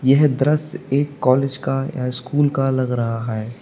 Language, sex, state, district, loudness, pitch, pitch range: Hindi, male, Uttar Pradesh, Lalitpur, -19 LUFS, 135 Hz, 125-145 Hz